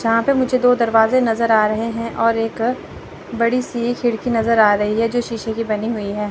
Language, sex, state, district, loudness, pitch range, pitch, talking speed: Hindi, female, Chandigarh, Chandigarh, -18 LUFS, 225-240 Hz, 230 Hz, 230 wpm